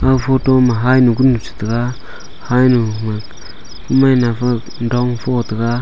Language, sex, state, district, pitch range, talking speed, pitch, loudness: Wancho, male, Arunachal Pradesh, Longding, 115-130 Hz, 125 wpm, 120 Hz, -15 LUFS